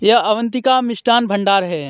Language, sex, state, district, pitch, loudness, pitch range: Hindi, male, Jharkhand, Deoghar, 230 Hz, -15 LUFS, 200-240 Hz